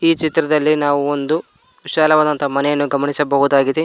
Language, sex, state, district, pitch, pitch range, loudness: Kannada, male, Karnataka, Koppal, 145 Hz, 140-155 Hz, -16 LUFS